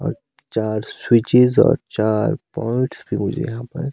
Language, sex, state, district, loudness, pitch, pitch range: Hindi, male, Himachal Pradesh, Shimla, -19 LUFS, 120 Hz, 110-140 Hz